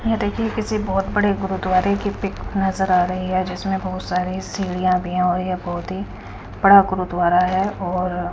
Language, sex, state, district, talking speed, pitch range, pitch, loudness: Hindi, female, Punjab, Kapurthala, 180 wpm, 180-195 Hz, 185 Hz, -20 LUFS